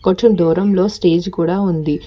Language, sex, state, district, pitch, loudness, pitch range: Telugu, female, Telangana, Hyderabad, 180 Hz, -15 LUFS, 170-195 Hz